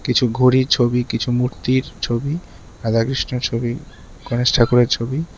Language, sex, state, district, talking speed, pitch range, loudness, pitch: Bengali, male, Tripura, West Tripura, 55 wpm, 115-130 Hz, -19 LUFS, 125 Hz